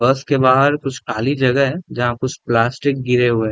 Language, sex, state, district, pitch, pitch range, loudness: Hindi, male, Bihar, Darbhanga, 130 Hz, 120-140 Hz, -17 LUFS